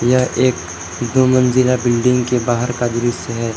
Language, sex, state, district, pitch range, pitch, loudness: Hindi, male, Jharkhand, Palamu, 120-125 Hz, 120 Hz, -16 LUFS